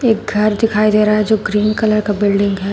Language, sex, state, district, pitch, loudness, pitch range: Hindi, female, Uttar Pradesh, Shamli, 210 Hz, -14 LUFS, 210-215 Hz